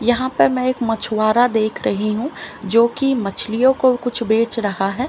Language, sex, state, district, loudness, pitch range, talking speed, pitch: Hindi, female, Chhattisgarh, Raigarh, -18 LUFS, 215-255 Hz, 190 wpm, 230 Hz